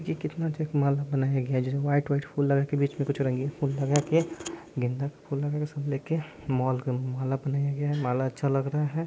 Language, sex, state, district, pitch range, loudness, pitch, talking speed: Bhojpuri, male, Bihar, Saran, 135-145 Hz, -28 LUFS, 140 Hz, 250 wpm